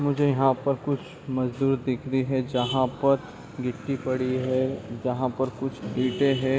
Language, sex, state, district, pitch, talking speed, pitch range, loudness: Hindi, male, Bihar, East Champaran, 130 Hz, 175 wpm, 130-135 Hz, -26 LUFS